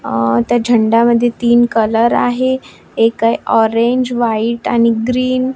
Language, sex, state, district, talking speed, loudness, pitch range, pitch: Marathi, female, Maharashtra, Washim, 150 wpm, -13 LUFS, 225-245 Hz, 235 Hz